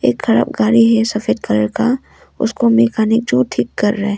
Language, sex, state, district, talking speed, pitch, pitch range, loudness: Hindi, female, Arunachal Pradesh, Longding, 185 wpm, 225 Hz, 205-230 Hz, -15 LUFS